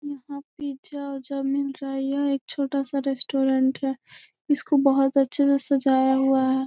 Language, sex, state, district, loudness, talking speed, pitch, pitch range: Hindi, female, Bihar, Gopalganj, -24 LUFS, 170 wpm, 275 Hz, 270-280 Hz